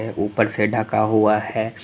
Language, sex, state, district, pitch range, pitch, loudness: Hindi, male, Tripura, West Tripura, 105-110 Hz, 110 Hz, -20 LUFS